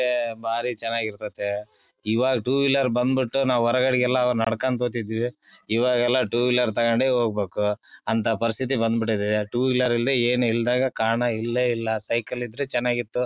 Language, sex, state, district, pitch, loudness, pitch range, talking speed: Kannada, male, Karnataka, Bellary, 120 Hz, -23 LUFS, 115-125 Hz, 150 wpm